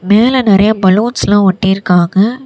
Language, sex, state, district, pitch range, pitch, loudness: Tamil, female, Tamil Nadu, Namakkal, 190-220 Hz, 205 Hz, -10 LUFS